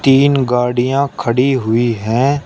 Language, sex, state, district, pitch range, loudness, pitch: Hindi, male, Uttar Pradesh, Shamli, 120-135 Hz, -14 LUFS, 130 Hz